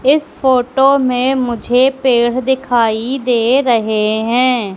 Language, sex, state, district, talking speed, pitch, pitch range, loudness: Hindi, female, Madhya Pradesh, Katni, 115 wpm, 250 Hz, 235-265 Hz, -14 LUFS